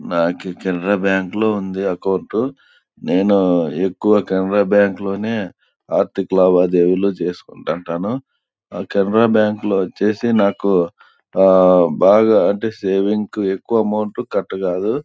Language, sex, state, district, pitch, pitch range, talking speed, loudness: Telugu, male, Andhra Pradesh, Anantapur, 100 Hz, 95-105 Hz, 115 wpm, -17 LUFS